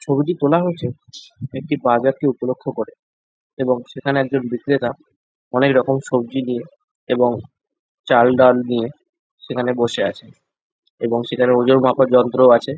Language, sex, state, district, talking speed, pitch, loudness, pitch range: Bengali, male, West Bengal, Jalpaiguri, 120 wpm, 130 Hz, -18 LUFS, 125-140 Hz